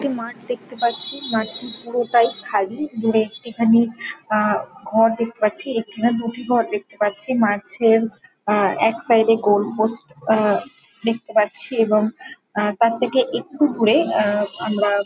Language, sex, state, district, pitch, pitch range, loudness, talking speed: Bengali, female, West Bengal, Jhargram, 225 Hz, 215-235 Hz, -20 LUFS, 145 wpm